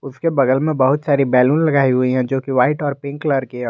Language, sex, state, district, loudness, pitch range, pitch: Hindi, male, Jharkhand, Garhwa, -17 LUFS, 130-145 Hz, 135 Hz